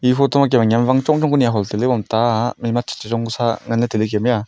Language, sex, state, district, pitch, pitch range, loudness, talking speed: Wancho, male, Arunachal Pradesh, Longding, 120 Hz, 115-125 Hz, -18 LUFS, 320 wpm